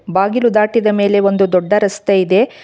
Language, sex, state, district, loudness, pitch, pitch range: Kannada, female, Karnataka, Bangalore, -14 LUFS, 200 Hz, 195-210 Hz